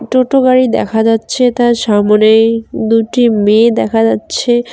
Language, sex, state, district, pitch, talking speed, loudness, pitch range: Bengali, female, West Bengal, Cooch Behar, 225 Hz, 125 wpm, -11 LUFS, 215-245 Hz